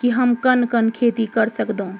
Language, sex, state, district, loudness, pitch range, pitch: Garhwali, female, Uttarakhand, Tehri Garhwal, -18 LUFS, 220-245 Hz, 235 Hz